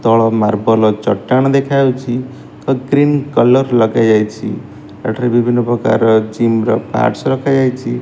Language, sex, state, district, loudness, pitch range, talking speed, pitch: Odia, male, Odisha, Malkangiri, -14 LUFS, 110-130 Hz, 110 wpm, 120 Hz